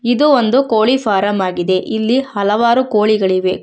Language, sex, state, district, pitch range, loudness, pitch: Kannada, female, Karnataka, Bangalore, 195-245 Hz, -14 LUFS, 220 Hz